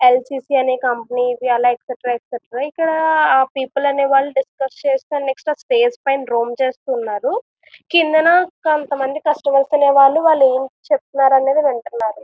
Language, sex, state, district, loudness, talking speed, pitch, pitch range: Telugu, female, Andhra Pradesh, Visakhapatnam, -17 LUFS, 155 wpm, 275 Hz, 255-300 Hz